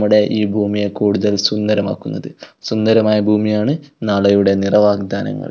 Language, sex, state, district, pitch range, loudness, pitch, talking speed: Malayalam, male, Kerala, Kozhikode, 100-105 Hz, -16 LUFS, 105 Hz, 110 wpm